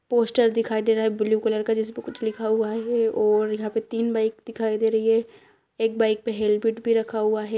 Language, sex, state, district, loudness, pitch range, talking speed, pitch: Hindi, female, Bihar, Kishanganj, -23 LUFS, 220-225 Hz, 245 wpm, 225 Hz